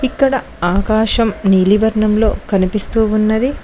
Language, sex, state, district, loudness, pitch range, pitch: Telugu, female, Telangana, Mahabubabad, -14 LUFS, 205-225 Hz, 215 Hz